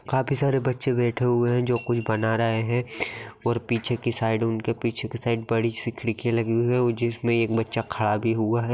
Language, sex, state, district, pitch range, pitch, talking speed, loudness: Magahi, male, Bihar, Gaya, 115-120 Hz, 115 Hz, 220 wpm, -25 LUFS